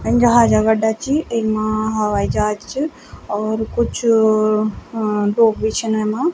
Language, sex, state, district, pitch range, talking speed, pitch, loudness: Garhwali, female, Uttarakhand, Tehri Garhwal, 215-235 Hz, 150 wpm, 220 Hz, -17 LUFS